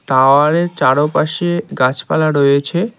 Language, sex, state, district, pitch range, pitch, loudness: Bengali, male, West Bengal, Cooch Behar, 140-170 Hz, 145 Hz, -14 LUFS